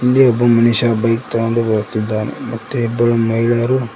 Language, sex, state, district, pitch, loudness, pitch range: Kannada, male, Karnataka, Koppal, 115 Hz, -15 LUFS, 115-120 Hz